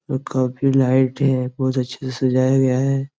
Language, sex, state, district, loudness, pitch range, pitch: Hindi, male, Jharkhand, Jamtara, -19 LUFS, 130-135 Hz, 130 Hz